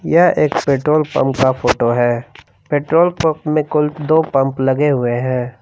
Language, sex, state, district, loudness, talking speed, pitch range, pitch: Hindi, male, Jharkhand, Palamu, -15 LUFS, 170 wpm, 125-150 Hz, 135 Hz